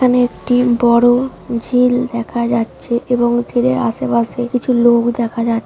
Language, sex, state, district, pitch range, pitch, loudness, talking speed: Bengali, female, West Bengal, Jhargram, 235-245 Hz, 240 Hz, -15 LUFS, 140 wpm